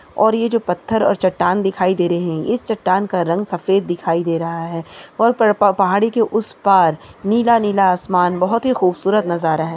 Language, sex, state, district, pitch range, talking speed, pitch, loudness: Hindi, female, Chhattisgarh, Kabirdham, 175-215 Hz, 205 wpm, 190 Hz, -17 LUFS